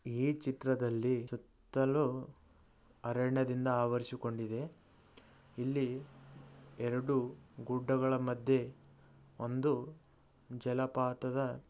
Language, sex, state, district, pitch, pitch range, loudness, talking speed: Kannada, male, Karnataka, Dharwad, 125 Hz, 120-135 Hz, -36 LUFS, 55 wpm